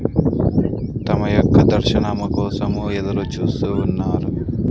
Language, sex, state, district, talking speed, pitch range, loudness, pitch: Telugu, male, Andhra Pradesh, Sri Satya Sai, 90 wpm, 100-105 Hz, -19 LUFS, 100 Hz